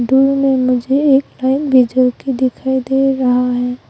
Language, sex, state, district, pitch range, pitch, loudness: Hindi, female, Arunachal Pradesh, Longding, 250-270 Hz, 260 Hz, -14 LUFS